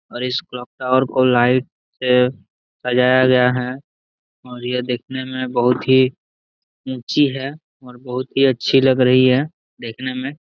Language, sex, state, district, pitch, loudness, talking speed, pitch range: Hindi, male, Jharkhand, Jamtara, 130 Hz, -18 LUFS, 160 wpm, 125-130 Hz